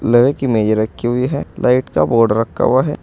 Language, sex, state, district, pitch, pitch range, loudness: Hindi, male, Uttar Pradesh, Saharanpur, 120 Hz, 115-130 Hz, -15 LUFS